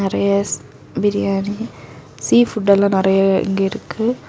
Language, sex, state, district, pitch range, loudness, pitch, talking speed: Tamil, female, Tamil Nadu, Kanyakumari, 195-205 Hz, -17 LUFS, 200 Hz, 110 wpm